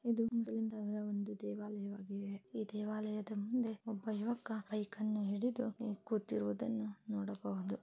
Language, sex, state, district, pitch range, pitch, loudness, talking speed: Kannada, female, Karnataka, Chamarajanagar, 200-225 Hz, 210 Hz, -41 LUFS, 105 wpm